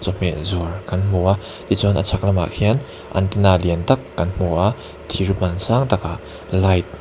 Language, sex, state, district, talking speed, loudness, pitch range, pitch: Mizo, male, Mizoram, Aizawl, 180 wpm, -19 LUFS, 90-100 Hz, 95 Hz